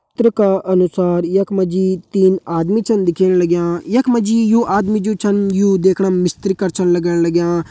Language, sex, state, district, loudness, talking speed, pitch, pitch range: Hindi, male, Uttarakhand, Uttarkashi, -15 LUFS, 200 wpm, 190 Hz, 175-205 Hz